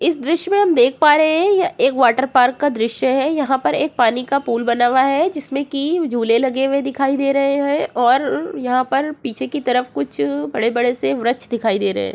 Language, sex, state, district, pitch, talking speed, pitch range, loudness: Hindi, female, Uttar Pradesh, Jyotiba Phule Nagar, 265 Hz, 220 wpm, 240-290 Hz, -17 LUFS